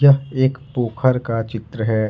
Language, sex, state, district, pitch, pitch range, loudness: Hindi, male, Jharkhand, Ranchi, 125 Hz, 115-135 Hz, -20 LUFS